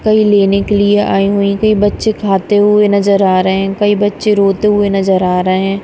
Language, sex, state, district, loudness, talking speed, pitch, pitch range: Hindi, female, Punjab, Kapurthala, -11 LUFS, 225 wpm, 200 Hz, 195-205 Hz